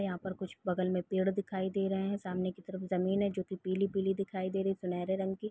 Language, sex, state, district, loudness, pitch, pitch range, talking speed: Hindi, female, Bihar, East Champaran, -34 LUFS, 190 Hz, 185-195 Hz, 270 wpm